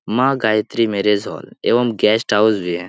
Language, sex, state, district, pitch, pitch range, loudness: Hindi, male, Bihar, Lakhisarai, 110 Hz, 105-115 Hz, -17 LUFS